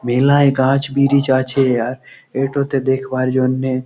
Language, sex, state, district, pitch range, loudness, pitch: Bengali, male, West Bengal, Malda, 130-135 Hz, -16 LUFS, 130 Hz